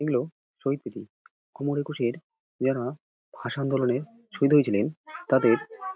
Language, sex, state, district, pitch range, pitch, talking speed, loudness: Bengali, male, West Bengal, Dakshin Dinajpur, 135-205 Hz, 145 Hz, 100 wpm, -27 LUFS